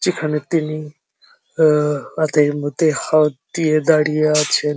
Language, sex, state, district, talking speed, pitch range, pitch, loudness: Bengali, male, West Bengal, Jhargram, 125 wpm, 150-155 Hz, 155 Hz, -17 LUFS